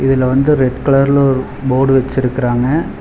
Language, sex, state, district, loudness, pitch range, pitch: Tamil, male, Tamil Nadu, Chennai, -13 LUFS, 130-135 Hz, 135 Hz